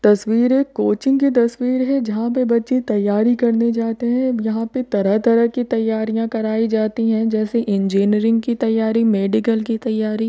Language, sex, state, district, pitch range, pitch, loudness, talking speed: Hindi, female, Uttar Pradesh, Varanasi, 220-240 Hz, 225 Hz, -18 LUFS, 165 wpm